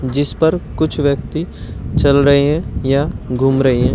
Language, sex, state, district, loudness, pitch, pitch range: Hindi, male, Uttar Pradesh, Shamli, -15 LUFS, 140 Hz, 130-145 Hz